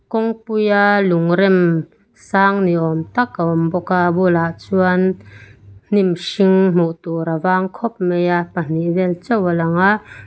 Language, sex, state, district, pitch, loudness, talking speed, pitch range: Mizo, female, Mizoram, Aizawl, 180 Hz, -16 LUFS, 170 wpm, 165-195 Hz